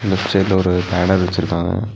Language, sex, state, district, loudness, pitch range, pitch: Tamil, male, Tamil Nadu, Nilgiris, -17 LUFS, 90-95 Hz, 95 Hz